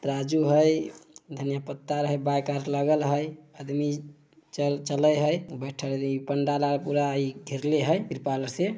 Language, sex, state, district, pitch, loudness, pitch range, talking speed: Maithili, male, Bihar, Samastipur, 145 Hz, -27 LUFS, 140-150 Hz, 110 wpm